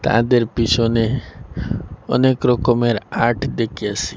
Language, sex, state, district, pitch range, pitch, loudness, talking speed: Bengali, female, Assam, Hailakandi, 115-125 Hz, 120 Hz, -18 LUFS, 85 wpm